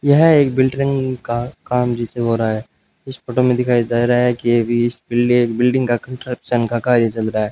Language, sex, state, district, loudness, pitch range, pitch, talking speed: Hindi, male, Rajasthan, Bikaner, -17 LUFS, 120-125 Hz, 120 Hz, 215 wpm